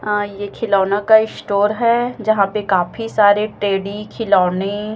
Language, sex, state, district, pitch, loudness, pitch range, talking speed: Hindi, female, Chhattisgarh, Raipur, 205 Hz, -17 LUFS, 200-220 Hz, 145 wpm